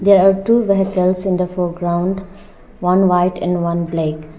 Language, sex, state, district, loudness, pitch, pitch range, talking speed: English, female, Arunachal Pradesh, Lower Dibang Valley, -16 LUFS, 180 Hz, 175-195 Hz, 165 wpm